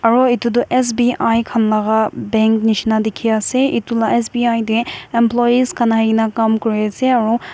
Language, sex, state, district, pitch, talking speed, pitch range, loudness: Nagamese, female, Nagaland, Kohima, 230 Hz, 165 wpm, 220-240 Hz, -16 LUFS